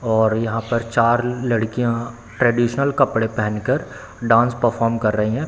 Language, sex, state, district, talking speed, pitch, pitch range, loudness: Hindi, male, Bihar, Samastipur, 155 wpm, 115 Hz, 115-120 Hz, -19 LUFS